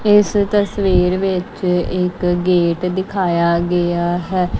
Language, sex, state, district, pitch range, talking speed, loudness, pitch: Punjabi, female, Punjab, Kapurthala, 175-190 Hz, 105 wpm, -17 LUFS, 180 Hz